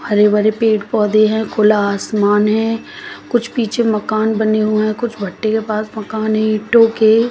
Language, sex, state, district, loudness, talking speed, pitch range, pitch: Hindi, female, Haryana, Jhajjar, -15 LUFS, 180 wpm, 215-225 Hz, 215 Hz